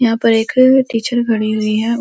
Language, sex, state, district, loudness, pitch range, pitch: Hindi, female, Uttar Pradesh, Muzaffarnagar, -14 LUFS, 225-240 Hz, 230 Hz